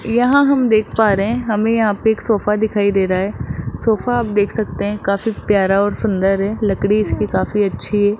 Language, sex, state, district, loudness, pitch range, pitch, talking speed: Hindi, male, Rajasthan, Jaipur, -17 LUFS, 200-220 Hz, 210 Hz, 220 wpm